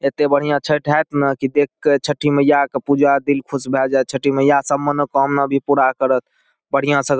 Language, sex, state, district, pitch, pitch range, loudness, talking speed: Maithili, male, Bihar, Saharsa, 140 Hz, 135-145 Hz, -17 LUFS, 235 wpm